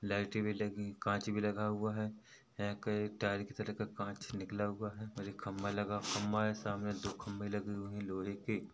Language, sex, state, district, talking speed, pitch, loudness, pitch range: Hindi, male, Chhattisgarh, Rajnandgaon, 215 wpm, 105 Hz, -39 LUFS, 100-105 Hz